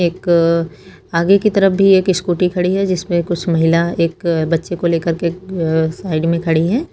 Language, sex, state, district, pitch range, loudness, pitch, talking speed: Hindi, female, Uttar Pradesh, Lucknow, 165-185 Hz, -16 LUFS, 170 Hz, 200 wpm